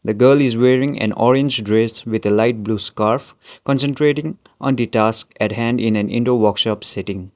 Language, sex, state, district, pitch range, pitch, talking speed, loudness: English, male, Sikkim, Gangtok, 110-130 Hz, 115 Hz, 190 wpm, -17 LUFS